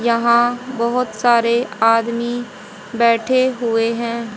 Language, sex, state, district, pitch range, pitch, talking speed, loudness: Hindi, female, Haryana, Jhajjar, 230-240 Hz, 235 Hz, 95 wpm, -17 LUFS